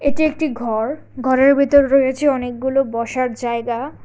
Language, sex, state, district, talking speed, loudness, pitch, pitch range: Bengali, female, Tripura, West Tripura, 135 wpm, -18 LUFS, 265 Hz, 240-280 Hz